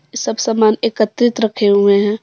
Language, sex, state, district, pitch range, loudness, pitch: Hindi, female, Jharkhand, Deoghar, 205-230 Hz, -15 LUFS, 220 Hz